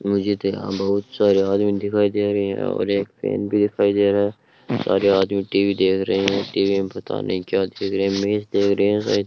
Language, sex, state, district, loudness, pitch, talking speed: Hindi, male, Rajasthan, Bikaner, -20 LUFS, 100 Hz, 220 wpm